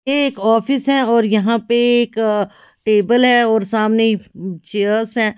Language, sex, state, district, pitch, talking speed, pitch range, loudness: Hindi, female, Haryana, Charkhi Dadri, 225 Hz, 145 wpm, 215-240 Hz, -15 LUFS